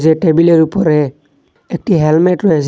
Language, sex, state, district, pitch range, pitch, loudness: Bengali, male, Assam, Hailakandi, 150-170 Hz, 160 Hz, -12 LUFS